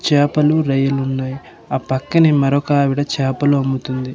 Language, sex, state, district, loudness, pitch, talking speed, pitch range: Telugu, male, Andhra Pradesh, Manyam, -17 LUFS, 140 Hz, 130 wpm, 135-145 Hz